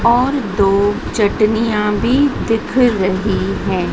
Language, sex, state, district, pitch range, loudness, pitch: Hindi, female, Madhya Pradesh, Dhar, 205-240 Hz, -15 LUFS, 215 Hz